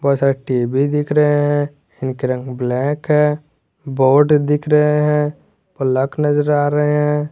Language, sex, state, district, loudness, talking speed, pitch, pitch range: Hindi, male, Jharkhand, Garhwa, -16 LUFS, 155 wpm, 145 Hz, 135-150 Hz